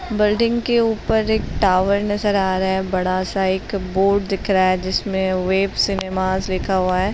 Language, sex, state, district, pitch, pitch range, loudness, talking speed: Hindi, female, Uttar Pradesh, Deoria, 190 Hz, 185-205 Hz, -19 LUFS, 185 wpm